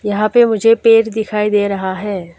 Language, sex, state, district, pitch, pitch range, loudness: Hindi, female, Arunachal Pradesh, Lower Dibang Valley, 210 Hz, 200-225 Hz, -14 LUFS